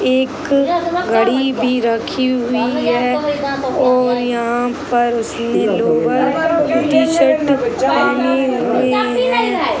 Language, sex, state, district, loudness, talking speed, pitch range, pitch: Hindi, female, Uttar Pradesh, Gorakhpur, -15 LUFS, 100 wpm, 240-280 Hz, 255 Hz